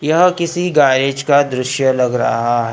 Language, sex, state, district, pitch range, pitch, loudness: Hindi, male, Maharashtra, Gondia, 125-155 Hz, 135 Hz, -15 LUFS